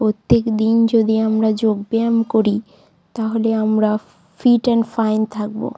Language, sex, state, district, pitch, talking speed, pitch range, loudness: Bengali, female, West Bengal, Jalpaiguri, 220 Hz, 135 wpm, 215-225 Hz, -17 LUFS